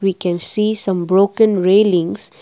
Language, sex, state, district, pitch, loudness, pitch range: English, female, Assam, Kamrup Metropolitan, 195 Hz, -14 LUFS, 180-210 Hz